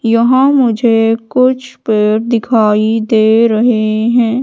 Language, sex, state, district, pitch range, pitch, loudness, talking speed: Hindi, female, Madhya Pradesh, Katni, 220-245 Hz, 230 Hz, -11 LUFS, 110 wpm